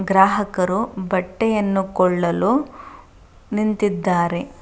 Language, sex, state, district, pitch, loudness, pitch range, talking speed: Kannada, female, Karnataka, Dharwad, 195 Hz, -20 LUFS, 185-215 Hz, 65 wpm